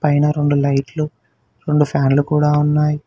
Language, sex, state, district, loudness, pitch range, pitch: Telugu, male, Telangana, Hyderabad, -17 LUFS, 135-150 Hz, 150 Hz